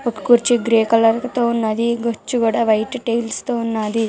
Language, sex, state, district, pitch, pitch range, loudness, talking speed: Telugu, female, Telangana, Karimnagar, 230 Hz, 225-240 Hz, -18 LUFS, 175 wpm